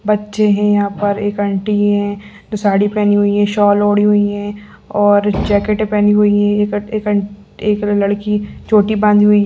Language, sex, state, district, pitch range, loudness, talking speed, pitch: Hindi, female, Uttarakhand, Uttarkashi, 205-210 Hz, -14 LUFS, 195 wpm, 205 Hz